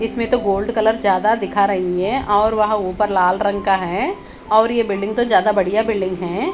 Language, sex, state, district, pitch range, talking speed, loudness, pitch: Hindi, female, Haryana, Charkhi Dadri, 195-220 Hz, 210 wpm, -18 LUFS, 205 Hz